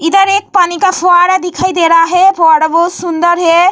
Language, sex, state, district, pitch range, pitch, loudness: Hindi, female, Bihar, Vaishali, 335-375 Hz, 350 Hz, -9 LUFS